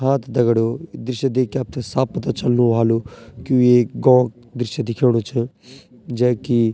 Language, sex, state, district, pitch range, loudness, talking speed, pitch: Garhwali, male, Uttarakhand, Tehri Garhwal, 115-130 Hz, -19 LUFS, 180 wpm, 125 Hz